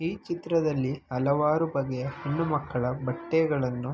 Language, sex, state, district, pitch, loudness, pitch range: Kannada, male, Karnataka, Mysore, 145 Hz, -28 LUFS, 130-160 Hz